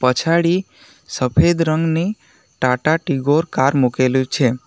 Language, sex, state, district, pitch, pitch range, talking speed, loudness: Gujarati, male, Gujarat, Navsari, 145 Hz, 130-165 Hz, 105 wpm, -17 LUFS